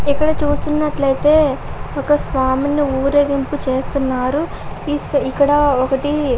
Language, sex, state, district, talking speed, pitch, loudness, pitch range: Telugu, female, Andhra Pradesh, Srikakulam, 85 wpm, 285 Hz, -17 LUFS, 270-295 Hz